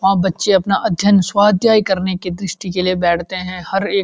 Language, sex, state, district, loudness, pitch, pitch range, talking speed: Hindi, male, Uttarakhand, Uttarkashi, -16 LUFS, 190 Hz, 185-200 Hz, 220 wpm